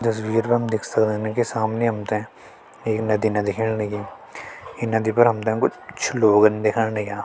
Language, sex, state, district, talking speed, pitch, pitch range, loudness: Hindi, male, Uttarakhand, Tehri Garhwal, 180 wpm, 110 Hz, 105-115 Hz, -21 LUFS